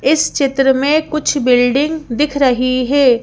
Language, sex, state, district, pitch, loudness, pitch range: Hindi, female, Madhya Pradesh, Bhopal, 275 Hz, -14 LUFS, 255-295 Hz